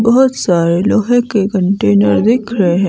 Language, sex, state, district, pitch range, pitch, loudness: Hindi, female, Himachal Pradesh, Shimla, 175-235 Hz, 195 Hz, -12 LUFS